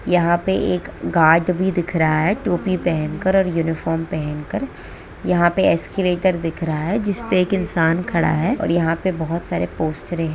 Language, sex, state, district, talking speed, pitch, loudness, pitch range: Hindi, female, West Bengal, Kolkata, 185 wpm, 175 Hz, -19 LUFS, 165-185 Hz